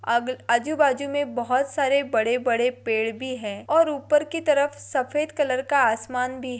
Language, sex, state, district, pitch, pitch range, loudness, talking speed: Hindi, female, Maharashtra, Dhule, 260 Hz, 240-290 Hz, -23 LUFS, 165 wpm